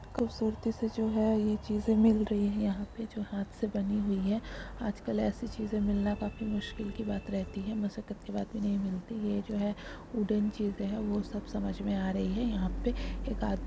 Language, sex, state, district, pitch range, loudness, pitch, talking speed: Hindi, female, Rajasthan, Churu, 205-220 Hz, -33 LUFS, 210 Hz, 215 wpm